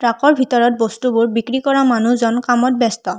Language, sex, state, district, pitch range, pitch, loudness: Assamese, female, Assam, Hailakandi, 230-255 Hz, 240 Hz, -15 LUFS